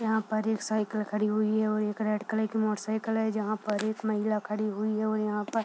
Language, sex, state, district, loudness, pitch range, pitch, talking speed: Hindi, female, Bihar, Purnia, -29 LUFS, 210-220 Hz, 215 Hz, 275 wpm